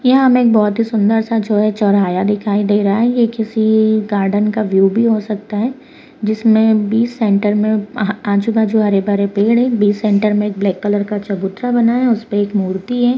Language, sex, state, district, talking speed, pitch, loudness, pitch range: Hindi, female, Uttarakhand, Uttarkashi, 215 wpm, 215 Hz, -15 LUFS, 205-230 Hz